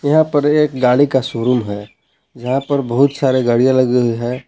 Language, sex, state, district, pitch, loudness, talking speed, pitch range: Hindi, male, Jharkhand, Palamu, 130 Hz, -15 LUFS, 200 wpm, 120-145 Hz